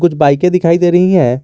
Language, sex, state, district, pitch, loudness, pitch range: Hindi, male, Jharkhand, Garhwa, 175 Hz, -11 LUFS, 145-180 Hz